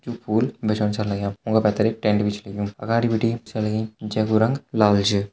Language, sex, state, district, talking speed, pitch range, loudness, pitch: Hindi, male, Uttarakhand, Uttarkashi, 225 wpm, 105-110 Hz, -22 LUFS, 110 Hz